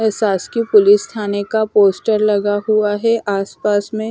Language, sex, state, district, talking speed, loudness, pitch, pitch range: Hindi, female, Himachal Pradesh, Shimla, 145 wpm, -16 LUFS, 210 Hz, 205-220 Hz